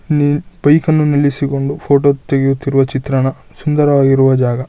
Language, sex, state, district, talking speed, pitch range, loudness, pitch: Kannada, male, Karnataka, Shimoga, 105 wpm, 135-145 Hz, -14 LUFS, 140 Hz